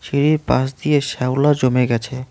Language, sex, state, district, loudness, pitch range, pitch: Bengali, male, West Bengal, Cooch Behar, -18 LUFS, 130-145 Hz, 135 Hz